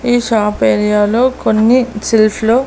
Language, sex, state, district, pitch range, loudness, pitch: Telugu, female, Andhra Pradesh, Annamaya, 210-245 Hz, -12 LUFS, 220 Hz